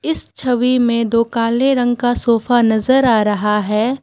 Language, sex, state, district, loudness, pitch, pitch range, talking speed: Hindi, female, Assam, Kamrup Metropolitan, -15 LUFS, 235 Hz, 225-250 Hz, 180 wpm